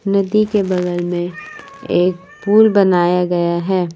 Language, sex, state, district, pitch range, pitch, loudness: Hindi, female, Jharkhand, Palamu, 175-205 Hz, 185 Hz, -16 LUFS